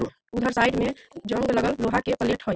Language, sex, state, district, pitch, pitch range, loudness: Maithili, female, Bihar, Samastipur, 235 Hz, 230-255 Hz, -25 LUFS